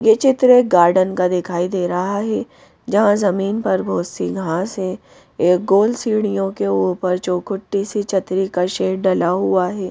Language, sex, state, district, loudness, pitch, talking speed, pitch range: Hindi, female, Madhya Pradesh, Bhopal, -18 LUFS, 190 Hz, 175 wpm, 180-205 Hz